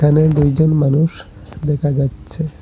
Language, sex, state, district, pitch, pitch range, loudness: Bengali, male, Assam, Hailakandi, 150 Hz, 140-155 Hz, -16 LUFS